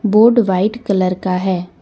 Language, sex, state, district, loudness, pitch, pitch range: Hindi, female, Jharkhand, Deoghar, -15 LUFS, 195 Hz, 185-220 Hz